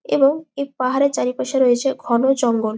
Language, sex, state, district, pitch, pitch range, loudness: Bengali, female, West Bengal, Jalpaiguri, 260 Hz, 235-280 Hz, -19 LUFS